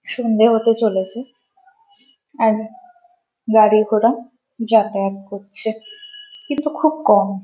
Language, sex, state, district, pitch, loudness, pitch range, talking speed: Bengali, female, West Bengal, Malda, 230 Hz, -17 LUFS, 220-310 Hz, 95 wpm